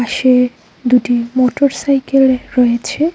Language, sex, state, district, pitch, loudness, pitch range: Bengali, female, Tripura, Unakoti, 255 Hz, -14 LUFS, 245-275 Hz